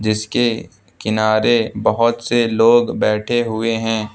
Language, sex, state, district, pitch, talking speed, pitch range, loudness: Hindi, male, Uttar Pradesh, Lucknow, 115 Hz, 115 wpm, 110-120 Hz, -17 LUFS